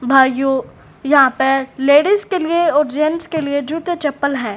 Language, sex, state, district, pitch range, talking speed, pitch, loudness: Hindi, female, Haryana, Rohtak, 270-320 Hz, 170 wpm, 285 Hz, -16 LUFS